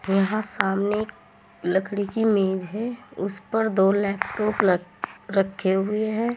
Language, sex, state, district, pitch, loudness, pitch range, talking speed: Hindi, female, Uttar Pradesh, Saharanpur, 200 Hz, -24 LUFS, 195-215 Hz, 130 wpm